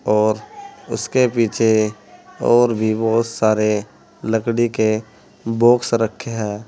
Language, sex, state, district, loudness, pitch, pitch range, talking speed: Hindi, male, Uttar Pradesh, Saharanpur, -18 LUFS, 110 Hz, 110-115 Hz, 110 wpm